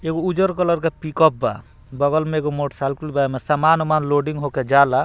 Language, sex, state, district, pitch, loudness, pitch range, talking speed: Bhojpuri, male, Bihar, Muzaffarpur, 150 Hz, -20 LUFS, 140-160 Hz, 215 wpm